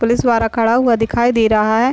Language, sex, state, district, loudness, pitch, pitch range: Hindi, male, Bihar, Madhepura, -14 LUFS, 230 Hz, 225-240 Hz